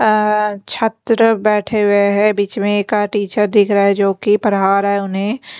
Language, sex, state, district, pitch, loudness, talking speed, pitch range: Hindi, female, Chhattisgarh, Raipur, 205 Hz, -15 LUFS, 195 wpm, 200-215 Hz